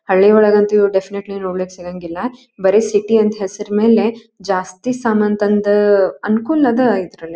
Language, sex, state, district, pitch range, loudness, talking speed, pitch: Kannada, female, Karnataka, Dharwad, 190-220 Hz, -15 LUFS, 140 wpm, 205 Hz